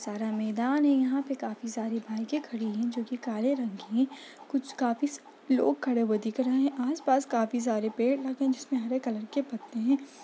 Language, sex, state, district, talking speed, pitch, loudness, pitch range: Hindi, female, Bihar, Bhagalpur, 210 wpm, 250 Hz, -30 LUFS, 230-275 Hz